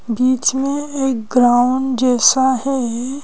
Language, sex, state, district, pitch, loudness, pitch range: Hindi, female, Madhya Pradesh, Bhopal, 255 Hz, -16 LUFS, 245-265 Hz